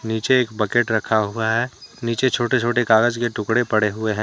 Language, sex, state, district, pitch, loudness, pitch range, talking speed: Hindi, male, Jharkhand, Deoghar, 115 Hz, -20 LUFS, 110-120 Hz, 200 wpm